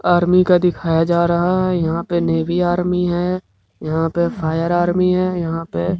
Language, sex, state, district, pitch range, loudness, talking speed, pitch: Hindi, male, Bihar, Vaishali, 165-180 Hz, -17 LUFS, 190 wpm, 175 Hz